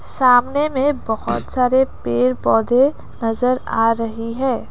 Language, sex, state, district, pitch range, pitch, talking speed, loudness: Hindi, female, Assam, Kamrup Metropolitan, 225-260 Hz, 245 Hz, 125 wpm, -17 LUFS